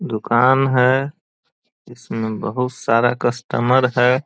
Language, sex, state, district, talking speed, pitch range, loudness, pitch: Hindi, male, Bihar, Jahanabad, 100 wpm, 120-130 Hz, -18 LUFS, 125 Hz